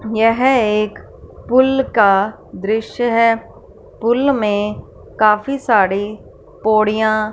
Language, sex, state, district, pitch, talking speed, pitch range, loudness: Hindi, female, Punjab, Fazilka, 220 Hz, 90 wpm, 210-250 Hz, -16 LUFS